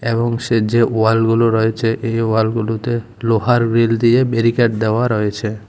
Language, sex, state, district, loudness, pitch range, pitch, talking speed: Bengali, male, Tripura, West Tripura, -16 LUFS, 110-115 Hz, 115 Hz, 125 wpm